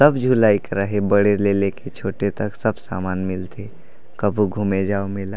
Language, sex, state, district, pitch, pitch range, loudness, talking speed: Chhattisgarhi, male, Chhattisgarh, Raigarh, 100 Hz, 95-105 Hz, -20 LUFS, 190 wpm